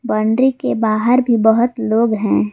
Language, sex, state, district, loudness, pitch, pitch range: Hindi, female, Jharkhand, Garhwa, -15 LUFS, 225 Hz, 215-245 Hz